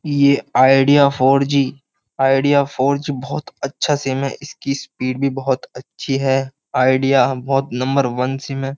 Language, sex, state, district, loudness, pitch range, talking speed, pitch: Hindi, male, Uttar Pradesh, Jyotiba Phule Nagar, -17 LUFS, 130-140 Hz, 155 wpm, 135 Hz